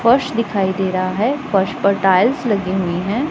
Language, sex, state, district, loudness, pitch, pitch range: Hindi, female, Punjab, Pathankot, -17 LUFS, 200 Hz, 190-240 Hz